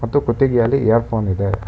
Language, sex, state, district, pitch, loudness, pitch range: Kannada, male, Karnataka, Bangalore, 115 Hz, -17 LUFS, 105-125 Hz